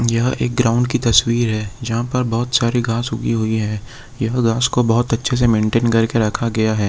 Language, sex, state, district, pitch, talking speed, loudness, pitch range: Hindi, male, Bihar, Jahanabad, 115 Hz, 225 wpm, -18 LUFS, 115-120 Hz